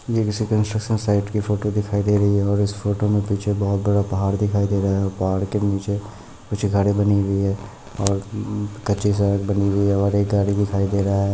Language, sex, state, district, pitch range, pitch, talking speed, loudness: Hindi, male, Bihar, Muzaffarpur, 100-105 Hz, 100 Hz, 240 wpm, -21 LUFS